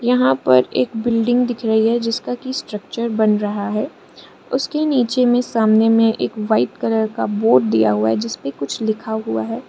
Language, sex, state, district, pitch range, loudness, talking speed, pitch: Hindi, female, Arunachal Pradesh, Lower Dibang Valley, 205-240 Hz, -18 LUFS, 200 wpm, 220 Hz